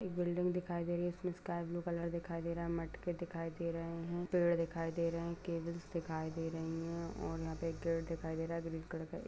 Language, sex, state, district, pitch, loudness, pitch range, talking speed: Hindi, female, Bihar, Madhepura, 170 Hz, -40 LUFS, 165-175 Hz, 265 wpm